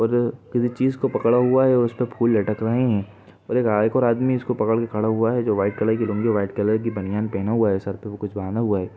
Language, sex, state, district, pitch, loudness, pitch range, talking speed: Hindi, male, Uttar Pradesh, Budaun, 115 Hz, -21 LUFS, 105-120 Hz, 315 wpm